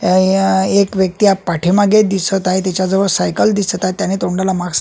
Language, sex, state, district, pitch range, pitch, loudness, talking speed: Marathi, male, Maharashtra, Solapur, 185-195 Hz, 190 Hz, -14 LUFS, 185 wpm